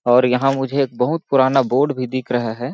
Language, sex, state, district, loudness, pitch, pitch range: Hindi, male, Chhattisgarh, Balrampur, -18 LUFS, 130 Hz, 125-135 Hz